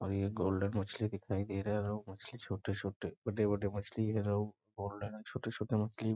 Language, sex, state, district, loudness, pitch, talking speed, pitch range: Hindi, male, Bihar, Sitamarhi, -38 LUFS, 105 Hz, 195 wpm, 100-110 Hz